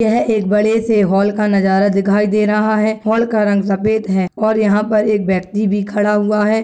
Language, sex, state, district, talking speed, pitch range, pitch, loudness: Angika, female, Bihar, Madhepura, 225 wpm, 200-215 Hz, 210 Hz, -15 LUFS